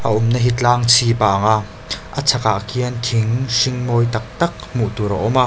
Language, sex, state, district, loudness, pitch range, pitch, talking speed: Mizo, male, Mizoram, Aizawl, -17 LUFS, 110-125 Hz, 120 Hz, 230 wpm